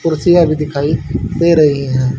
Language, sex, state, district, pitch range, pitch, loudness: Hindi, male, Haryana, Charkhi Dadri, 140-165 Hz, 155 Hz, -13 LUFS